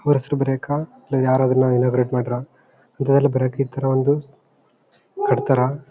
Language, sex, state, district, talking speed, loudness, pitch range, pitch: Kannada, male, Karnataka, Bellary, 110 wpm, -20 LUFS, 130-140 Hz, 135 Hz